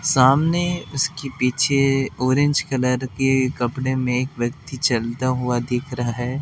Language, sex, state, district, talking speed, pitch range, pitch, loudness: Hindi, male, Delhi, New Delhi, 140 wpm, 125-135 Hz, 130 Hz, -21 LUFS